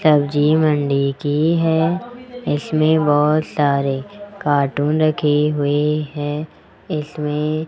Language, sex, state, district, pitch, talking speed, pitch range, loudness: Hindi, male, Rajasthan, Jaipur, 150 Hz, 100 wpm, 145-155 Hz, -18 LUFS